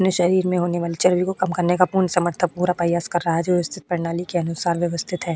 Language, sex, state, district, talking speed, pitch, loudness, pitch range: Hindi, female, Uttar Pradesh, Budaun, 270 wpm, 175 Hz, -21 LUFS, 170-180 Hz